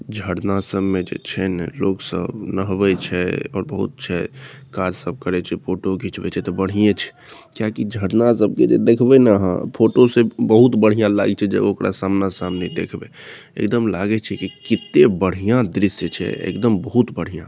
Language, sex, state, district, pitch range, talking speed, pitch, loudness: Maithili, male, Bihar, Saharsa, 95-110 Hz, 165 wpm, 100 Hz, -18 LUFS